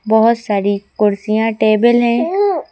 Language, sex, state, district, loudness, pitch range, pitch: Hindi, female, Madhya Pradesh, Bhopal, -14 LUFS, 210-235 Hz, 220 Hz